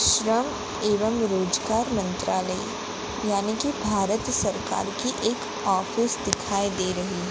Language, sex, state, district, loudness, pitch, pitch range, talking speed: Hindi, female, Gujarat, Gandhinagar, -25 LUFS, 210 Hz, 195-225 Hz, 115 wpm